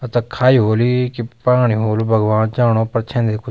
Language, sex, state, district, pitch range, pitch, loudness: Garhwali, male, Uttarakhand, Tehri Garhwal, 110-125 Hz, 120 Hz, -16 LUFS